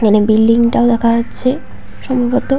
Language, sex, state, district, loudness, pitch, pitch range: Bengali, female, West Bengal, Paschim Medinipur, -13 LUFS, 235 Hz, 230-255 Hz